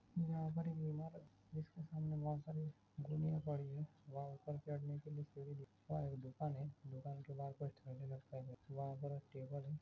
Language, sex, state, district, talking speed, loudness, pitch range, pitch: Hindi, male, Bihar, Lakhisarai, 165 wpm, -47 LUFS, 140-155 Hz, 145 Hz